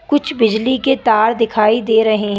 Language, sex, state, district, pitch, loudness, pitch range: Hindi, female, Madhya Pradesh, Bhopal, 225 Hz, -14 LUFS, 215-260 Hz